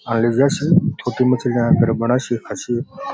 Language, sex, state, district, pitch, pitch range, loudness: Rajasthani, male, Rajasthan, Churu, 125 Hz, 120-155 Hz, -18 LUFS